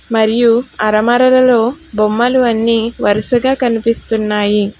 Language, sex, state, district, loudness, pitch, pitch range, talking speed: Telugu, female, Telangana, Hyderabad, -13 LUFS, 230 Hz, 215-245 Hz, 85 wpm